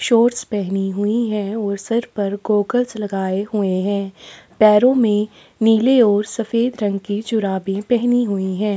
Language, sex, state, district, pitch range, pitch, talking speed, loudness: Hindi, female, Chhattisgarh, Kabirdham, 200-230 Hz, 210 Hz, 150 wpm, -18 LUFS